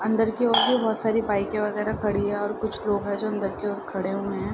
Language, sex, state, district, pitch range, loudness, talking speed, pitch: Hindi, female, Bihar, Araria, 200-220 Hz, -25 LUFS, 290 wpm, 210 Hz